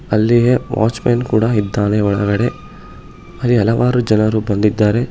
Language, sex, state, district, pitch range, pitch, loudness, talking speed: Kannada, male, Karnataka, Bangalore, 105-120 Hz, 110 Hz, -15 LUFS, 115 wpm